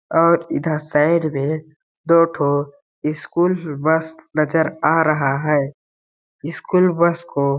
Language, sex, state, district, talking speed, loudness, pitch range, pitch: Hindi, male, Chhattisgarh, Balrampur, 135 wpm, -19 LUFS, 145-165 Hz, 155 Hz